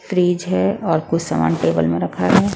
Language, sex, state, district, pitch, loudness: Hindi, female, Bihar, West Champaran, 160 Hz, -18 LUFS